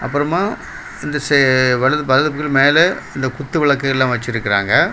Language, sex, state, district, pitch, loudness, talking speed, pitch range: Tamil, male, Tamil Nadu, Kanyakumari, 140 Hz, -16 LUFS, 135 wpm, 130-150 Hz